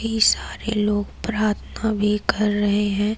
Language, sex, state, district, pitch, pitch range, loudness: Hindi, female, Uttar Pradesh, Lucknow, 210 Hz, 205-220 Hz, -21 LUFS